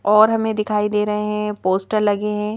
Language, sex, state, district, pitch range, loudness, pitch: Hindi, female, Madhya Pradesh, Bhopal, 210-215 Hz, -19 LUFS, 210 Hz